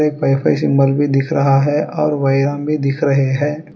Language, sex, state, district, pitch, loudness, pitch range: Hindi, female, Telangana, Hyderabad, 145 Hz, -15 LUFS, 135-150 Hz